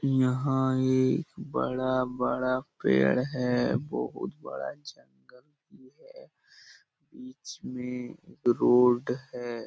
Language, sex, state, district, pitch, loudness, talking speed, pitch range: Hindi, male, Chhattisgarh, Bastar, 130 Hz, -28 LUFS, 95 wpm, 125-135 Hz